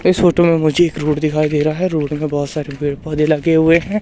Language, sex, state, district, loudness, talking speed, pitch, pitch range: Hindi, male, Madhya Pradesh, Katni, -16 LUFS, 285 wpm, 155 Hz, 150-170 Hz